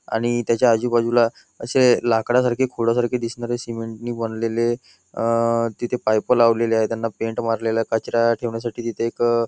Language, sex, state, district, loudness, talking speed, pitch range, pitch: Marathi, male, Maharashtra, Nagpur, -21 LUFS, 160 wpm, 115-120 Hz, 115 Hz